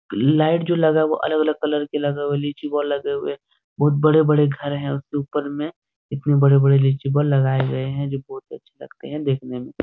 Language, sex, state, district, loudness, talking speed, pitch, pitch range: Hindi, male, Bihar, Jahanabad, -20 LUFS, 250 wpm, 145 Hz, 140-155 Hz